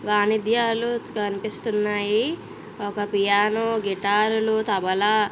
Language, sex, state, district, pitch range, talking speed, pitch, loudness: Telugu, female, Andhra Pradesh, Visakhapatnam, 205-220 Hz, 80 wpm, 210 Hz, -23 LUFS